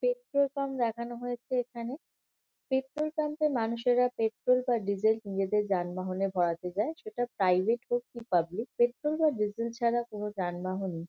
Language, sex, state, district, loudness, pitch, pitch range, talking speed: Bengali, female, West Bengal, Kolkata, -31 LUFS, 235 Hz, 200-255 Hz, 145 wpm